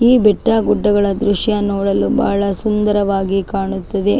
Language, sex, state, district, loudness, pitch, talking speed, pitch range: Kannada, female, Karnataka, Dakshina Kannada, -16 LUFS, 205 Hz, 130 wpm, 195-210 Hz